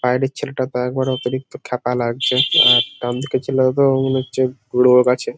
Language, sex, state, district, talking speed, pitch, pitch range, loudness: Bengali, male, West Bengal, North 24 Parganas, 180 wpm, 125 Hz, 125-130 Hz, -17 LUFS